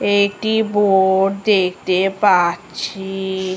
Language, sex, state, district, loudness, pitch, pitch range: Bengali, female, West Bengal, Malda, -17 LUFS, 195 Hz, 190-200 Hz